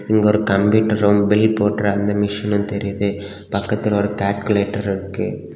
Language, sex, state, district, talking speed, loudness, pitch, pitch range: Tamil, male, Tamil Nadu, Kanyakumari, 130 wpm, -18 LUFS, 105 Hz, 100-105 Hz